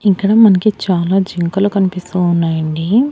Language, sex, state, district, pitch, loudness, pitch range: Telugu, female, Andhra Pradesh, Annamaya, 190 Hz, -14 LUFS, 175-200 Hz